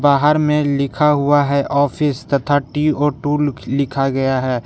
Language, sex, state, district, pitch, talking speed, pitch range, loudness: Hindi, male, Jharkhand, Garhwa, 145 Hz, 165 wpm, 140-150 Hz, -17 LUFS